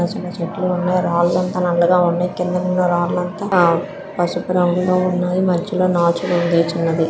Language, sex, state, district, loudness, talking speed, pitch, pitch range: Telugu, female, Andhra Pradesh, Visakhapatnam, -18 LUFS, 135 wpm, 180 Hz, 175-185 Hz